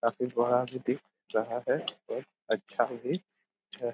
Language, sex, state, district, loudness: Hindi, male, Jharkhand, Jamtara, -31 LUFS